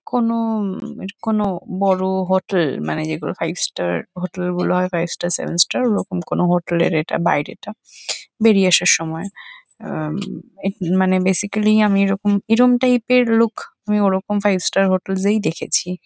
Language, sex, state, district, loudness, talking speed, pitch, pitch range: Bengali, female, West Bengal, Kolkata, -19 LUFS, 165 wpm, 190 Hz, 180-215 Hz